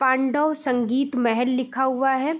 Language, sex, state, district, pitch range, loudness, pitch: Hindi, female, Bihar, Vaishali, 255-270 Hz, -22 LUFS, 265 Hz